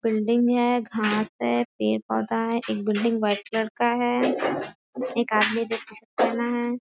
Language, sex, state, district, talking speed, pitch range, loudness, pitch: Hindi, female, Bihar, Sitamarhi, 160 wpm, 205-240 Hz, -24 LUFS, 225 Hz